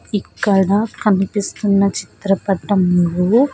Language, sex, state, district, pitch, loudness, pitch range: Telugu, female, Andhra Pradesh, Sri Satya Sai, 200 Hz, -17 LUFS, 190-205 Hz